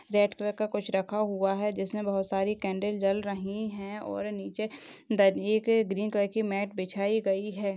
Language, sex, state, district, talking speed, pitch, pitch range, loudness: Hindi, female, Maharashtra, Nagpur, 200 wpm, 200 Hz, 195-210 Hz, -30 LUFS